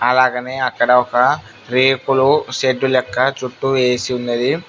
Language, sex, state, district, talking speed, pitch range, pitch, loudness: Telugu, male, Telangana, Mahabubabad, 115 wpm, 125-130 Hz, 130 Hz, -16 LUFS